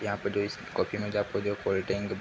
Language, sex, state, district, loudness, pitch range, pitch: Hindi, male, Bihar, Araria, -31 LUFS, 100-105 Hz, 100 Hz